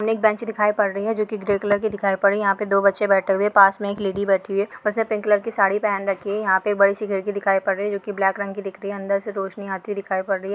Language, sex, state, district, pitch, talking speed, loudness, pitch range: Hindi, female, Maharashtra, Chandrapur, 200 Hz, 330 wpm, -21 LUFS, 195-210 Hz